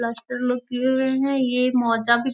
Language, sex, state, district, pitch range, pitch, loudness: Hindi, female, Bihar, Gaya, 235-260 Hz, 250 Hz, -22 LUFS